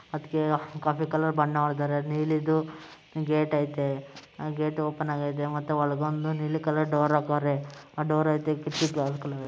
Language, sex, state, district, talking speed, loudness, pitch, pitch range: Kannada, male, Karnataka, Mysore, 140 wpm, -28 LUFS, 150 Hz, 145-155 Hz